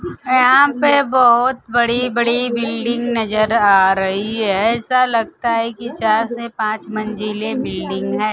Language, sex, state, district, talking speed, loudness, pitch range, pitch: Hindi, female, Bihar, Kaimur, 145 wpm, -16 LUFS, 215-245 Hz, 235 Hz